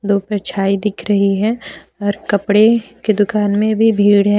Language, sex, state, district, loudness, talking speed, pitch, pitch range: Hindi, female, Jharkhand, Deoghar, -15 LUFS, 165 wpm, 205 Hz, 200-215 Hz